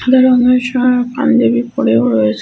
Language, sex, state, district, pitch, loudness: Bengali, female, West Bengal, Jhargram, 245 Hz, -12 LUFS